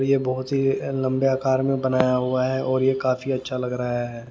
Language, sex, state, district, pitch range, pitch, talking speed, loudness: Hindi, male, Haryana, Jhajjar, 130-135 Hz, 130 Hz, 225 wpm, -23 LUFS